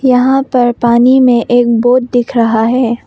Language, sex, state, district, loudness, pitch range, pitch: Hindi, female, Arunachal Pradesh, Longding, -10 LUFS, 235-255 Hz, 245 Hz